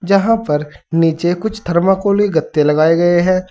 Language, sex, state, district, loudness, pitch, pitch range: Hindi, male, Uttar Pradesh, Saharanpur, -14 LUFS, 175 Hz, 160-195 Hz